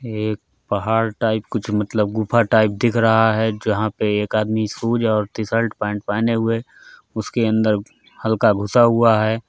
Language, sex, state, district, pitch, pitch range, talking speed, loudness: Hindi, male, Bihar, Gopalganj, 110 Hz, 105-115 Hz, 165 wpm, -19 LUFS